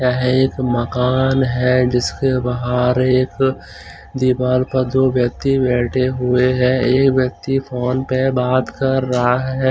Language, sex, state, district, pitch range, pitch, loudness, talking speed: Hindi, male, Chandigarh, Chandigarh, 125-130 Hz, 130 Hz, -17 LUFS, 135 wpm